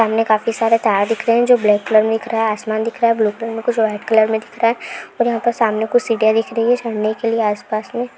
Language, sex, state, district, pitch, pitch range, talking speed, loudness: Hindi, female, Uttarakhand, Tehri Garhwal, 225 Hz, 215-230 Hz, 310 wpm, -17 LUFS